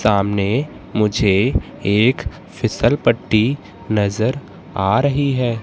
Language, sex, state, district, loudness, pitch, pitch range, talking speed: Hindi, male, Madhya Pradesh, Katni, -18 LUFS, 110 Hz, 100-130 Hz, 95 wpm